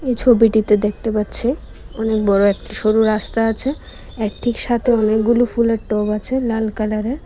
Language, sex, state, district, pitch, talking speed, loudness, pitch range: Bengali, female, Tripura, West Tripura, 220 Hz, 165 wpm, -18 LUFS, 215-240 Hz